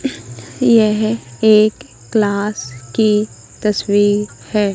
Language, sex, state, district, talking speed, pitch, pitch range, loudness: Hindi, female, Madhya Pradesh, Katni, 75 wpm, 210 Hz, 200-215 Hz, -16 LUFS